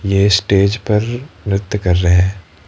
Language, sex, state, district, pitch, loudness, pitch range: Hindi, male, Rajasthan, Jaipur, 100 Hz, -15 LUFS, 95-105 Hz